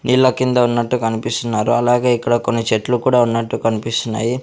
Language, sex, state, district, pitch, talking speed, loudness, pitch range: Telugu, male, Andhra Pradesh, Sri Satya Sai, 120 Hz, 150 wpm, -17 LUFS, 115-125 Hz